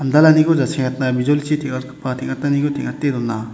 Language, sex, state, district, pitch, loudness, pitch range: Garo, male, Meghalaya, West Garo Hills, 140 Hz, -18 LUFS, 130-145 Hz